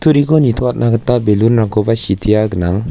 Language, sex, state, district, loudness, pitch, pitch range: Garo, male, Meghalaya, West Garo Hills, -13 LUFS, 115 Hz, 105-125 Hz